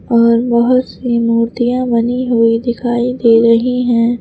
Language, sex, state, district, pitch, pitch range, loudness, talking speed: Hindi, female, Uttar Pradesh, Lucknow, 240 Hz, 230-245 Hz, -13 LUFS, 145 wpm